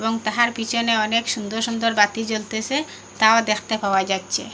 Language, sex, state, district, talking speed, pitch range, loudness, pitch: Bengali, female, Assam, Hailakandi, 145 wpm, 215-230 Hz, -20 LUFS, 225 Hz